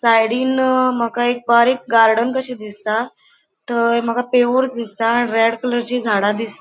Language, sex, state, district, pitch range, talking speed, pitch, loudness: Konkani, female, Goa, North and South Goa, 225-245 Hz, 145 wpm, 235 Hz, -17 LUFS